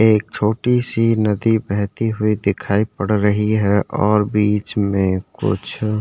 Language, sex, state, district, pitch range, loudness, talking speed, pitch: Hindi, male, Chhattisgarh, Sukma, 100-110 Hz, -18 LUFS, 150 wpm, 105 Hz